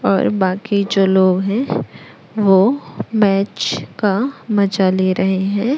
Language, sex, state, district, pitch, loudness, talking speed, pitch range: Hindi, male, Chhattisgarh, Raipur, 200 Hz, -16 LUFS, 125 wpm, 190-210 Hz